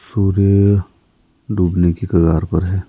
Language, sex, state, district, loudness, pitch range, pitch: Hindi, male, Himachal Pradesh, Shimla, -16 LUFS, 85-100 Hz, 95 Hz